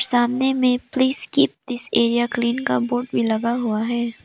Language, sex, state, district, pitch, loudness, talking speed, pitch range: Hindi, female, Arunachal Pradesh, Lower Dibang Valley, 240 Hz, -20 LUFS, 185 wpm, 235-255 Hz